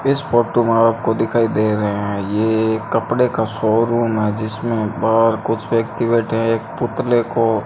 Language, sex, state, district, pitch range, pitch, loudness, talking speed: Hindi, male, Rajasthan, Bikaner, 110-115 Hz, 115 Hz, -18 LUFS, 190 wpm